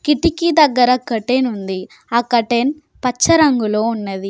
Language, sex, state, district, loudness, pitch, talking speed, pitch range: Telugu, female, Telangana, Komaram Bheem, -16 LUFS, 245 Hz, 125 wpm, 225-295 Hz